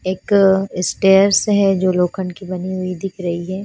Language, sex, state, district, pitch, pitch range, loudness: Hindi, female, Punjab, Fazilka, 190 Hz, 180-195 Hz, -17 LUFS